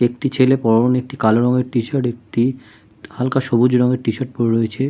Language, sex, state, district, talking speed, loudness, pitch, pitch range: Bengali, male, West Bengal, Kolkata, 170 wpm, -17 LUFS, 125 Hz, 115-130 Hz